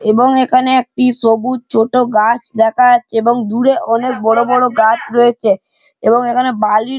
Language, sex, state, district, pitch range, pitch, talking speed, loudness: Bengali, male, West Bengal, Malda, 225-255 Hz, 240 Hz, 165 wpm, -13 LUFS